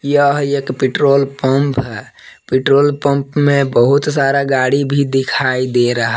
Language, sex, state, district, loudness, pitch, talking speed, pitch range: Hindi, male, Jharkhand, Palamu, -14 LUFS, 140 Hz, 145 wpm, 130-140 Hz